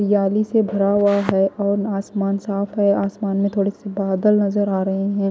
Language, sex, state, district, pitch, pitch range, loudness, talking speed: Hindi, female, Chandigarh, Chandigarh, 200 Hz, 195-205 Hz, -19 LUFS, 205 wpm